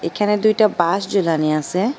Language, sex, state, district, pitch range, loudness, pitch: Bengali, female, Assam, Hailakandi, 165-210 Hz, -18 LUFS, 195 Hz